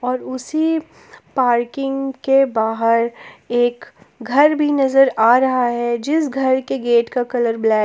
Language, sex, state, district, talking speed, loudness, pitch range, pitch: Hindi, female, Jharkhand, Palamu, 155 wpm, -17 LUFS, 235-270 Hz, 255 Hz